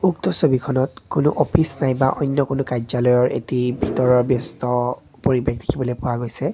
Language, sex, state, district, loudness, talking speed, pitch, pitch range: Assamese, male, Assam, Kamrup Metropolitan, -20 LUFS, 135 wpm, 130 Hz, 125-145 Hz